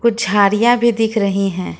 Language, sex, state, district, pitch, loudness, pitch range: Hindi, female, Jharkhand, Ranchi, 210 Hz, -15 LUFS, 195-235 Hz